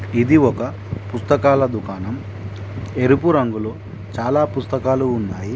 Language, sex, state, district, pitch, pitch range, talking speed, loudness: Telugu, male, Telangana, Mahabubabad, 115 Hz, 100-130 Hz, 95 wpm, -19 LUFS